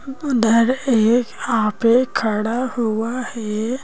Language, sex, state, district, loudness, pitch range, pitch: Hindi, female, Madhya Pradesh, Bhopal, -19 LUFS, 220-255 Hz, 235 Hz